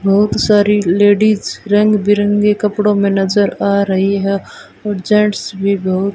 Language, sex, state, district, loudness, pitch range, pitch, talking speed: Hindi, female, Rajasthan, Bikaner, -13 LUFS, 195-210 Hz, 205 Hz, 155 wpm